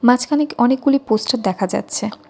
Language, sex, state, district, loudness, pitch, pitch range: Bengali, female, West Bengal, Cooch Behar, -18 LUFS, 245 Hz, 220-275 Hz